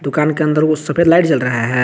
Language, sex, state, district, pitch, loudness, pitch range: Hindi, male, Jharkhand, Garhwa, 150 Hz, -14 LUFS, 135-155 Hz